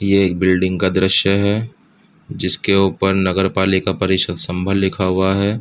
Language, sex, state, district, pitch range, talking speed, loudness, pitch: Hindi, male, Uttar Pradesh, Budaun, 95-100 Hz, 160 wpm, -16 LUFS, 95 Hz